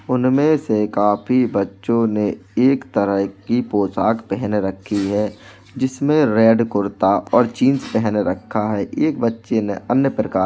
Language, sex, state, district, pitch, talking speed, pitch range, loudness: Hindi, male, Uttar Pradesh, Jalaun, 110 Hz, 150 wpm, 100-125 Hz, -18 LUFS